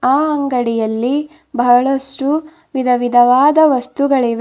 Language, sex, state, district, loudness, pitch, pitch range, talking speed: Kannada, female, Karnataka, Bidar, -14 LUFS, 270 Hz, 245-295 Hz, 70 wpm